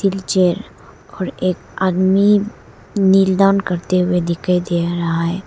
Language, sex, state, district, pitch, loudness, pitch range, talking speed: Hindi, female, Arunachal Pradesh, Lower Dibang Valley, 185 Hz, -17 LUFS, 175-195 Hz, 130 wpm